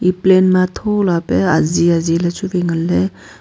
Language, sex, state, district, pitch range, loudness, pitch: Wancho, female, Arunachal Pradesh, Longding, 165-185 Hz, -15 LUFS, 175 Hz